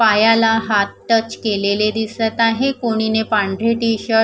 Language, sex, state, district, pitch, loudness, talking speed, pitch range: Marathi, female, Maharashtra, Gondia, 225 Hz, -17 LUFS, 170 wpm, 215-230 Hz